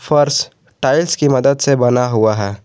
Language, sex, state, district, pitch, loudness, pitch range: Hindi, male, Jharkhand, Garhwa, 135 Hz, -14 LUFS, 110-145 Hz